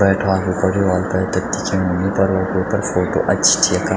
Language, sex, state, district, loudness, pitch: Garhwali, male, Uttarakhand, Tehri Garhwal, -17 LUFS, 95 Hz